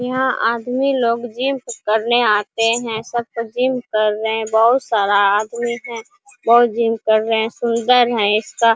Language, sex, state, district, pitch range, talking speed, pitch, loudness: Hindi, female, Chhattisgarh, Korba, 220-245 Hz, 165 wpm, 235 Hz, -17 LUFS